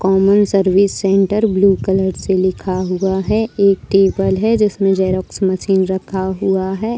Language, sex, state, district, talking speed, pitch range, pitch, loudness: Hindi, female, Jharkhand, Deoghar, 155 wpm, 190-200 Hz, 195 Hz, -15 LUFS